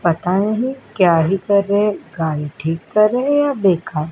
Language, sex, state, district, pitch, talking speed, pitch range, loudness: Hindi, male, Madhya Pradesh, Dhar, 190 Hz, 190 wpm, 165-215 Hz, -17 LUFS